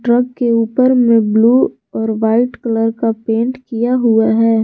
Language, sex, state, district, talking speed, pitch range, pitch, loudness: Hindi, female, Jharkhand, Garhwa, 170 wpm, 225-245 Hz, 230 Hz, -14 LUFS